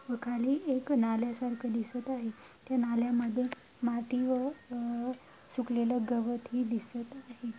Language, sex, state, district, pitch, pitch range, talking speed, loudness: Marathi, female, Maharashtra, Dhule, 245 Hz, 235-255 Hz, 125 wpm, -33 LUFS